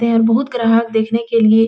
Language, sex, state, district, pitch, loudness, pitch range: Hindi, female, Uttar Pradesh, Etah, 230 Hz, -15 LUFS, 225-235 Hz